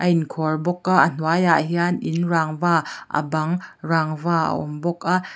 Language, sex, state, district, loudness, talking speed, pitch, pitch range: Mizo, female, Mizoram, Aizawl, -21 LUFS, 200 wpm, 165 Hz, 160-175 Hz